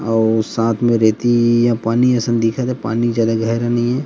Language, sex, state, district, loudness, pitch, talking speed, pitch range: Chhattisgarhi, male, Chhattisgarh, Rajnandgaon, -16 LUFS, 115 Hz, 205 wpm, 115-120 Hz